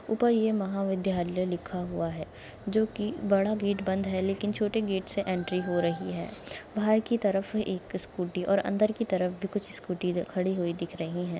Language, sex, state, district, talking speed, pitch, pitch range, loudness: Hindi, female, Maharashtra, Nagpur, 185 wpm, 195 Hz, 180-210 Hz, -30 LUFS